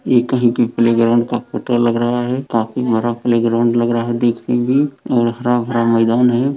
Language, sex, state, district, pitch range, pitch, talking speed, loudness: Hindi, male, Bihar, Sitamarhi, 115-120 Hz, 120 Hz, 190 wpm, -16 LUFS